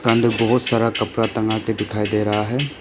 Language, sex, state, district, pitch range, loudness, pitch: Hindi, male, Arunachal Pradesh, Papum Pare, 105-115 Hz, -20 LUFS, 115 Hz